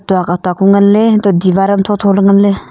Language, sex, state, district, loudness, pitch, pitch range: Wancho, female, Arunachal Pradesh, Longding, -10 LUFS, 195 Hz, 185-200 Hz